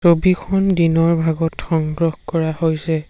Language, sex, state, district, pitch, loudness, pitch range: Assamese, male, Assam, Sonitpur, 165 Hz, -18 LUFS, 160-170 Hz